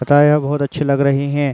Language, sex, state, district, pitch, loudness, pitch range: Hindi, male, Uttar Pradesh, Varanasi, 145 Hz, -16 LUFS, 140-145 Hz